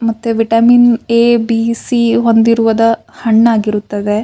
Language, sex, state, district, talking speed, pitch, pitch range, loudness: Kannada, female, Karnataka, Bijapur, 100 wpm, 230 Hz, 225-235 Hz, -11 LUFS